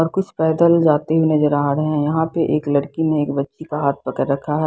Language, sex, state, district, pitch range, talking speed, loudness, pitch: Hindi, female, Maharashtra, Gondia, 145-160 Hz, 270 wpm, -18 LUFS, 150 Hz